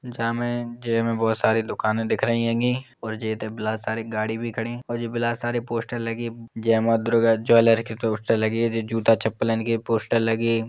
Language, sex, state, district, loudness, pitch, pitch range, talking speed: Bundeli, male, Uttar Pradesh, Jalaun, -23 LUFS, 115 Hz, 110-115 Hz, 190 wpm